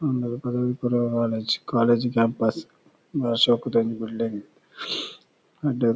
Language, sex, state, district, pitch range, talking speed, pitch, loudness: Tulu, male, Karnataka, Dakshina Kannada, 115-125 Hz, 110 wpm, 120 Hz, -24 LUFS